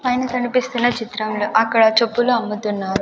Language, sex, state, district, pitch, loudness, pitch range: Telugu, female, Andhra Pradesh, Sri Satya Sai, 230 Hz, -18 LUFS, 215-245 Hz